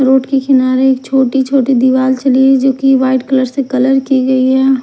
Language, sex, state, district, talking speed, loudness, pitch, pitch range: Hindi, female, Bihar, Katihar, 200 wpm, -11 LUFS, 265 Hz, 260-270 Hz